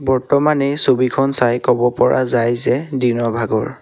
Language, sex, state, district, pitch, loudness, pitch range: Assamese, male, Assam, Sonitpur, 125 Hz, -16 LUFS, 120-135 Hz